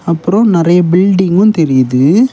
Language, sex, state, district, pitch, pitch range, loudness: Tamil, male, Tamil Nadu, Kanyakumari, 175 Hz, 165-200 Hz, -10 LUFS